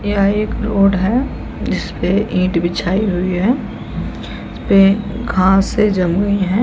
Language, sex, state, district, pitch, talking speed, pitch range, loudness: Hindi, female, Chhattisgarh, Balrampur, 195 Hz, 125 wpm, 185-210 Hz, -16 LUFS